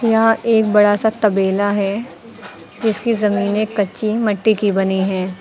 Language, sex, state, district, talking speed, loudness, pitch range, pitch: Hindi, female, Uttar Pradesh, Lucknow, 145 wpm, -17 LUFS, 200-220 Hz, 210 Hz